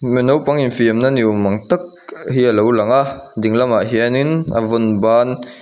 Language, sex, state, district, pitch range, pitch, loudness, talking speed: Mizo, male, Mizoram, Aizawl, 115-135 Hz, 125 Hz, -15 LUFS, 180 wpm